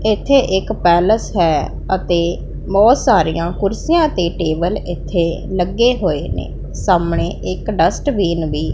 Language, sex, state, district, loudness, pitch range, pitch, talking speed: Punjabi, female, Punjab, Pathankot, -16 LUFS, 170-220 Hz, 185 Hz, 130 wpm